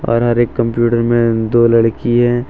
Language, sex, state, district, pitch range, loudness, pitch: Hindi, male, Jharkhand, Deoghar, 115-120 Hz, -13 LUFS, 120 Hz